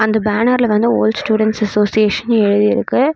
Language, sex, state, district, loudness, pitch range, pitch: Tamil, female, Tamil Nadu, Namakkal, -14 LUFS, 210-235 Hz, 220 Hz